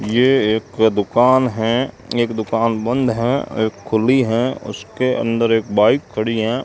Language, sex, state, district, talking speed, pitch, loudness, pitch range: Hindi, male, Rajasthan, Bikaner, 160 wpm, 115 Hz, -17 LUFS, 110-125 Hz